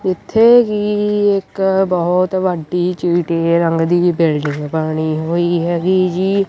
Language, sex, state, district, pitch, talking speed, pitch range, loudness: Punjabi, male, Punjab, Kapurthala, 175 Hz, 120 wpm, 170-190 Hz, -15 LUFS